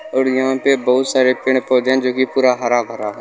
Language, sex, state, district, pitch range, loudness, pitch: Bhojpuri, male, Bihar, Saran, 125-130 Hz, -16 LUFS, 130 Hz